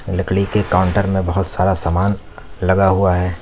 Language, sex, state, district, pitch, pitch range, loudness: Hindi, male, Uttar Pradesh, Lalitpur, 95 Hz, 90-100 Hz, -17 LUFS